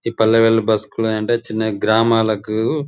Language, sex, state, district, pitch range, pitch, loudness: Telugu, male, Telangana, Nalgonda, 110-115 Hz, 110 Hz, -17 LUFS